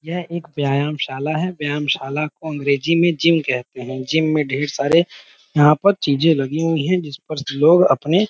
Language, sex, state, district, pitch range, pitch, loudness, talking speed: Hindi, male, Uttar Pradesh, Varanasi, 140-165 Hz, 150 Hz, -18 LUFS, 175 wpm